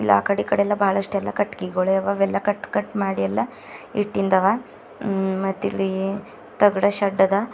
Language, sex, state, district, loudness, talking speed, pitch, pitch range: Kannada, male, Karnataka, Bidar, -22 LUFS, 135 wpm, 195 Hz, 190-205 Hz